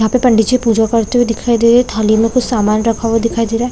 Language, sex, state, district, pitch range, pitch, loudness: Hindi, female, Chhattisgarh, Bilaspur, 225-245 Hz, 230 Hz, -13 LUFS